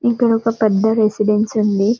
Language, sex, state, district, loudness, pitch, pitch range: Telugu, female, Telangana, Karimnagar, -16 LUFS, 220 Hz, 210-230 Hz